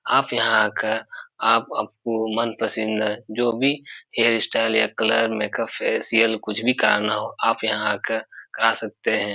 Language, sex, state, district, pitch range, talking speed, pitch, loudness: Hindi, male, Bihar, Supaul, 110-120 Hz, 160 wpm, 115 Hz, -21 LUFS